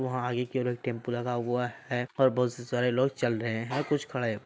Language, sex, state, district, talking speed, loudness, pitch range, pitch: Hindi, male, Bihar, Saharsa, 270 wpm, -30 LUFS, 120-130 Hz, 125 Hz